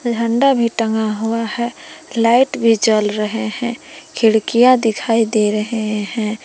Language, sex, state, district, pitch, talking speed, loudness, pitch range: Hindi, female, Jharkhand, Palamu, 225 Hz, 140 wpm, -16 LUFS, 215-235 Hz